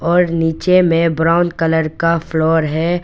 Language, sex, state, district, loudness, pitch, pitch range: Hindi, female, Arunachal Pradesh, Papum Pare, -15 LUFS, 165 Hz, 160-170 Hz